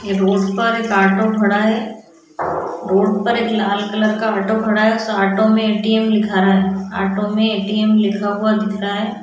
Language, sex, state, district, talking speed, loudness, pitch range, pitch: Hindi, female, Goa, North and South Goa, 195 wpm, -16 LUFS, 195-220 Hz, 210 Hz